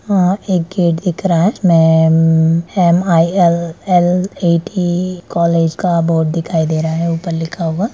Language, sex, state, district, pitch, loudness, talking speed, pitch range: Hindi, female, Bihar, Darbhanga, 170 Hz, -14 LUFS, 135 wpm, 165-180 Hz